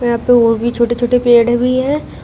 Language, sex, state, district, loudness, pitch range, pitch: Hindi, female, Uttar Pradesh, Shamli, -13 LUFS, 235-250 Hz, 240 Hz